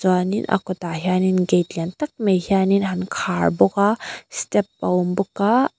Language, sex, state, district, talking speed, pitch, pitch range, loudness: Mizo, female, Mizoram, Aizawl, 205 wpm, 190 Hz, 180-200 Hz, -21 LUFS